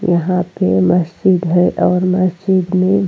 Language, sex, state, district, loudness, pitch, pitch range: Hindi, female, Goa, North and South Goa, -14 LUFS, 180 Hz, 175-185 Hz